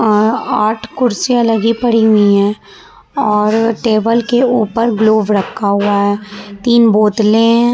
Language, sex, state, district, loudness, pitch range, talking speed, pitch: Hindi, female, Bihar, Vaishali, -12 LUFS, 210-230 Hz, 140 wpm, 220 Hz